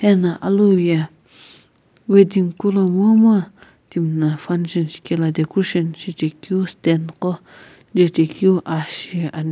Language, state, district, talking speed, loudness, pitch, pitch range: Sumi, Nagaland, Kohima, 100 wpm, -18 LUFS, 175 Hz, 160-190 Hz